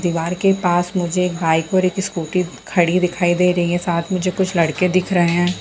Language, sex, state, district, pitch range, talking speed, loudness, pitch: Hindi, female, Bihar, Jamui, 175-185 Hz, 225 wpm, -18 LUFS, 180 Hz